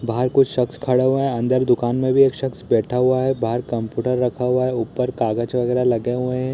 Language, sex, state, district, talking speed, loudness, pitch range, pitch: Hindi, male, Bihar, East Champaran, 240 wpm, -20 LUFS, 120-130 Hz, 125 Hz